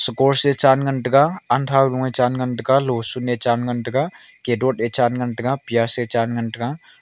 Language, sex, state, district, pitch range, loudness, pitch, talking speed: Wancho, male, Arunachal Pradesh, Longding, 120-135 Hz, -19 LUFS, 125 Hz, 215 wpm